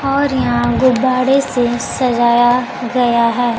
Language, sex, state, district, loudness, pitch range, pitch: Hindi, female, Bihar, Kaimur, -14 LUFS, 240-255 Hz, 245 Hz